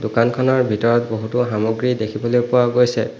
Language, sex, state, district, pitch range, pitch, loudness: Assamese, male, Assam, Hailakandi, 110-125 Hz, 120 Hz, -18 LUFS